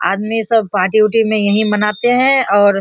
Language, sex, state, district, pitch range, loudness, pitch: Hindi, female, Bihar, Kishanganj, 205-225 Hz, -13 LUFS, 215 Hz